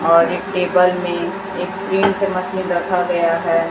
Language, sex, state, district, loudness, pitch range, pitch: Hindi, female, Chhattisgarh, Raipur, -18 LUFS, 175-185 Hz, 180 Hz